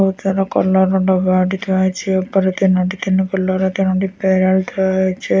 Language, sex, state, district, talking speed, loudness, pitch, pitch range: Odia, female, Odisha, Nuapada, 180 wpm, -16 LUFS, 190 Hz, 185-190 Hz